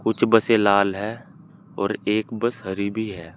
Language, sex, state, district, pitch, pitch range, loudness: Hindi, male, Uttar Pradesh, Saharanpur, 105 Hz, 100-110 Hz, -22 LUFS